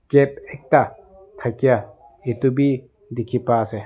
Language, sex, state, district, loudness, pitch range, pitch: Nagamese, male, Nagaland, Dimapur, -21 LUFS, 120-140 Hz, 125 Hz